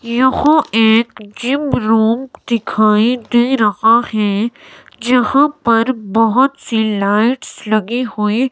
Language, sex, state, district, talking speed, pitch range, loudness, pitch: Hindi, female, Himachal Pradesh, Shimla, 105 wpm, 220-255 Hz, -14 LUFS, 235 Hz